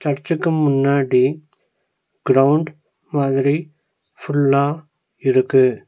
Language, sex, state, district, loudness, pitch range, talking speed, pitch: Tamil, male, Tamil Nadu, Nilgiris, -18 LUFS, 135-155 Hz, 60 wpm, 140 Hz